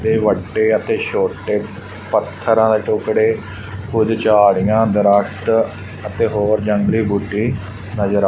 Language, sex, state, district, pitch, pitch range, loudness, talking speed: Punjabi, male, Punjab, Fazilka, 105 Hz, 100-110 Hz, -17 LUFS, 115 wpm